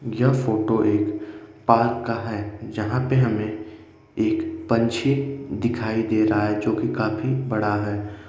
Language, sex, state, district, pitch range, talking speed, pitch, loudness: Hindi, male, Uttar Pradesh, Ghazipur, 105-115 Hz, 135 wpm, 110 Hz, -23 LUFS